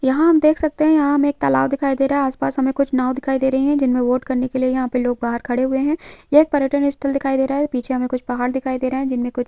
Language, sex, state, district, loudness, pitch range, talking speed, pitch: Hindi, female, Uttarakhand, Tehri Garhwal, -19 LUFS, 255-280 Hz, 330 wpm, 265 Hz